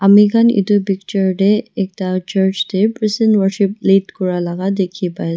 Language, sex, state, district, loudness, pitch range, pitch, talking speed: Nagamese, female, Nagaland, Dimapur, -15 LUFS, 190-205 Hz, 195 Hz, 190 wpm